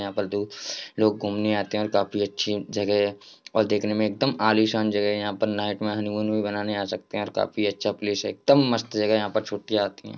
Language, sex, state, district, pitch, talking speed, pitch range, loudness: Hindi, male, Bihar, Jahanabad, 105 Hz, 245 wpm, 105-110 Hz, -25 LUFS